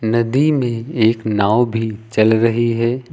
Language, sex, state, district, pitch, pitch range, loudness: Hindi, male, Uttar Pradesh, Lucknow, 115 Hz, 110-120 Hz, -16 LUFS